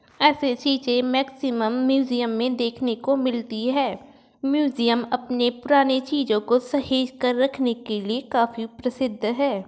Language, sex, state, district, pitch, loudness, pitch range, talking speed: Hindi, female, Uttar Pradesh, Varanasi, 250 Hz, -23 LUFS, 235-270 Hz, 135 wpm